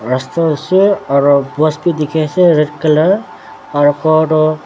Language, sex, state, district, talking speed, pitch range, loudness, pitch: Nagamese, male, Nagaland, Dimapur, 140 wpm, 140-160 Hz, -13 LUFS, 150 Hz